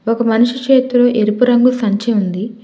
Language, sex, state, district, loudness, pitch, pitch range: Telugu, female, Telangana, Hyderabad, -14 LUFS, 230 Hz, 215-245 Hz